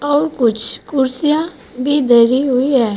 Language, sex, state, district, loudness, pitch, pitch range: Hindi, female, Uttar Pradesh, Saharanpur, -15 LUFS, 265 Hz, 245-290 Hz